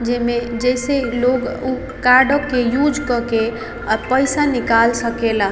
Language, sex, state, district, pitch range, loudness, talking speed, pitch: Maithili, female, Bihar, Samastipur, 235-260 Hz, -17 LUFS, 140 wpm, 245 Hz